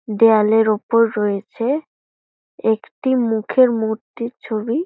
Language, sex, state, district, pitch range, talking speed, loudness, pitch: Bengali, female, West Bengal, Kolkata, 220-245 Hz, 100 wpm, -18 LUFS, 225 Hz